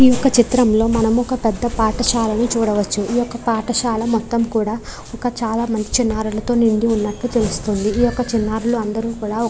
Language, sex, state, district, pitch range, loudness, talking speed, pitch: Telugu, female, Andhra Pradesh, Krishna, 220-240 Hz, -18 LUFS, 165 wpm, 230 Hz